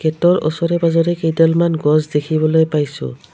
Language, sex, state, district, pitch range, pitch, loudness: Assamese, female, Assam, Kamrup Metropolitan, 150-165 Hz, 160 Hz, -16 LUFS